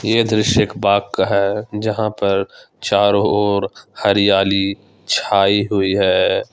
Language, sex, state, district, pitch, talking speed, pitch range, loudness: Hindi, male, Jharkhand, Ranchi, 100 Hz, 130 wpm, 100-105 Hz, -16 LUFS